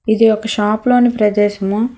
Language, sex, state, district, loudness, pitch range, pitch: Telugu, female, Telangana, Hyderabad, -14 LUFS, 210-230 Hz, 220 Hz